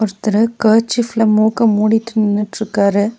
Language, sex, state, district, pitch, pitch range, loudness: Tamil, female, Tamil Nadu, Nilgiris, 220 Hz, 210-225 Hz, -15 LUFS